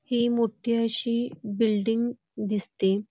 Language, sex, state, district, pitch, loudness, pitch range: Marathi, female, Karnataka, Belgaum, 230 Hz, -27 LUFS, 210-235 Hz